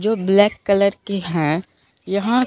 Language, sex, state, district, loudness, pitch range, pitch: Hindi, female, Bihar, Katihar, -19 LUFS, 190-210 Hz, 200 Hz